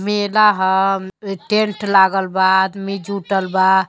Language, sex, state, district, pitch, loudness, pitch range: Bhojpuri, female, Uttar Pradesh, Gorakhpur, 195 Hz, -16 LUFS, 190-205 Hz